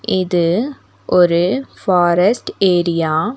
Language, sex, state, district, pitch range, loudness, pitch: Tamil, female, Tamil Nadu, Nilgiris, 175-210 Hz, -15 LUFS, 180 Hz